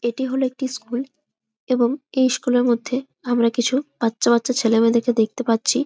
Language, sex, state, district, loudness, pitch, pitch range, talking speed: Bengali, female, West Bengal, Malda, -20 LUFS, 245 Hz, 235-260 Hz, 165 wpm